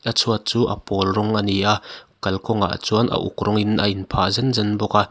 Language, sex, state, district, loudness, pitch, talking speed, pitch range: Mizo, male, Mizoram, Aizawl, -20 LUFS, 105 Hz, 260 wpm, 100-110 Hz